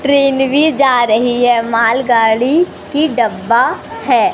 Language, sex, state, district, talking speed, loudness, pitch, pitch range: Hindi, male, Madhya Pradesh, Katni, 125 wpm, -12 LUFS, 245 Hz, 230-280 Hz